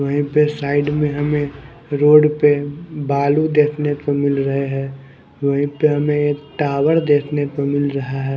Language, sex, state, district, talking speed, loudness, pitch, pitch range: Hindi, male, Chandigarh, Chandigarh, 165 wpm, -17 LUFS, 145 Hz, 140-150 Hz